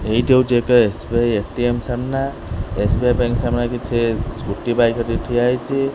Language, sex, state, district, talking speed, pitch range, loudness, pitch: Odia, male, Odisha, Khordha, 190 wpm, 115-125 Hz, -19 LUFS, 120 Hz